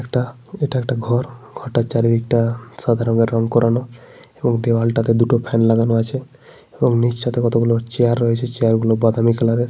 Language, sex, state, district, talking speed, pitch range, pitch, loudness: Bengali, male, Jharkhand, Sahebganj, 160 wpm, 115-120 Hz, 115 Hz, -18 LUFS